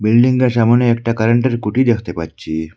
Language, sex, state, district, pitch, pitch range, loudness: Bengali, male, Assam, Hailakandi, 115 Hz, 105-120 Hz, -15 LUFS